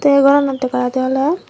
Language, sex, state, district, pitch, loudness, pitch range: Chakma, female, Tripura, Dhalai, 275 Hz, -15 LUFS, 260-280 Hz